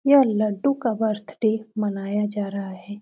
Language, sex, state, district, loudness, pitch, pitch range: Hindi, female, Uttar Pradesh, Muzaffarnagar, -24 LUFS, 215 Hz, 205-225 Hz